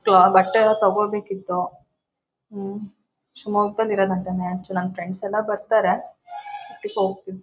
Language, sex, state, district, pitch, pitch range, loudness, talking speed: Kannada, female, Karnataka, Shimoga, 200 Hz, 185-215 Hz, -22 LUFS, 90 wpm